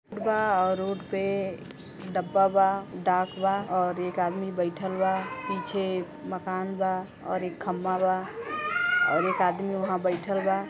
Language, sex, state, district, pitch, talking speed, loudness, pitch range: Bhojpuri, female, Uttar Pradesh, Gorakhpur, 190 Hz, 145 wpm, -28 LUFS, 185-195 Hz